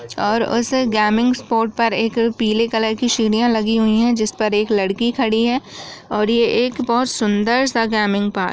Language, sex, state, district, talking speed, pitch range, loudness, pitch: Hindi, female, Bihar, Jahanabad, 190 wpm, 215-240 Hz, -17 LUFS, 225 Hz